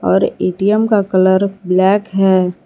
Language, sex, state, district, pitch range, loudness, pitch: Hindi, female, Jharkhand, Garhwa, 185-200 Hz, -14 LUFS, 190 Hz